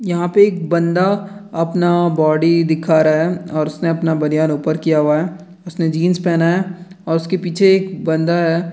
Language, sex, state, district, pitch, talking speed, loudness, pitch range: Hindi, male, Bihar, Jamui, 170 Hz, 185 wpm, -16 LUFS, 160-180 Hz